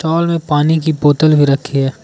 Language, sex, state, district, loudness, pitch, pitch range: Hindi, male, Arunachal Pradesh, Lower Dibang Valley, -13 LUFS, 150 Hz, 145-160 Hz